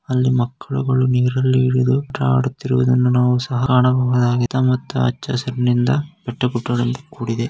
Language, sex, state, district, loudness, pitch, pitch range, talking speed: Kannada, male, Karnataka, Gulbarga, -18 LUFS, 125 Hz, 125-130 Hz, 105 wpm